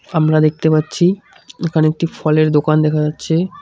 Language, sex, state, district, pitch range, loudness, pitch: Bengali, male, West Bengal, Cooch Behar, 155-165 Hz, -15 LUFS, 155 Hz